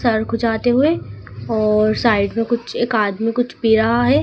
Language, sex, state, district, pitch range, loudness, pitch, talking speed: Hindi, female, Madhya Pradesh, Dhar, 215-235 Hz, -17 LUFS, 225 Hz, 185 wpm